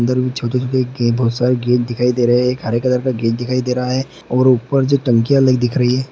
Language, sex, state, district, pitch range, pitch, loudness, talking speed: Hindi, male, Bihar, Lakhisarai, 120-130 Hz, 125 Hz, -16 LUFS, 265 wpm